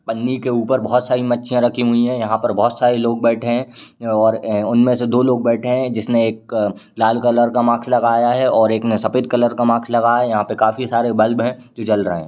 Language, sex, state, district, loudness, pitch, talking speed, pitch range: Hindi, male, Uttar Pradesh, Ghazipur, -17 LUFS, 120 Hz, 250 wpm, 110-120 Hz